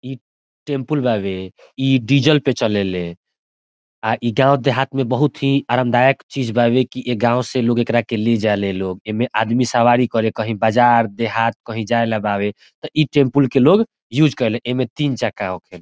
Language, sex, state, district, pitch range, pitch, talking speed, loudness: Bhojpuri, male, Bihar, Saran, 110-135 Hz, 120 Hz, 195 wpm, -18 LUFS